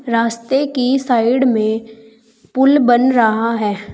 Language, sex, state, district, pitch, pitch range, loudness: Hindi, female, Uttar Pradesh, Saharanpur, 230 Hz, 225-260 Hz, -15 LUFS